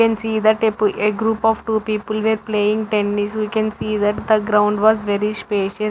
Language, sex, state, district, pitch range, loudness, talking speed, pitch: English, female, Punjab, Fazilka, 210-220 Hz, -18 LUFS, 215 wpm, 215 Hz